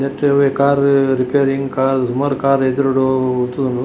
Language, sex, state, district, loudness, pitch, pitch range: Tulu, male, Karnataka, Dakshina Kannada, -16 LUFS, 135 Hz, 130-140 Hz